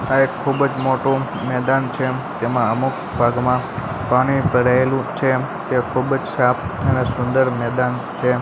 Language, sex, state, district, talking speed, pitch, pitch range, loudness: Gujarati, male, Gujarat, Gandhinagar, 135 wpm, 130 Hz, 125-135 Hz, -19 LUFS